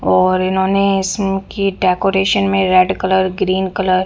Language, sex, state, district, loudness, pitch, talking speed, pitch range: Hindi, female, Punjab, Fazilka, -15 LUFS, 190 Hz, 165 wpm, 185-195 Hz